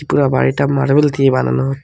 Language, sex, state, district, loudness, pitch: Bengali, male, West Bengal, Alipurduar, -14 LUFS, 135 Hz